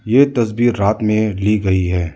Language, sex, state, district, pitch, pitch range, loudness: Hindi, male, Arunachal Pradesh, Lower Dibang Valley, 105 Hz, 95-115 Hz, -16 LUFS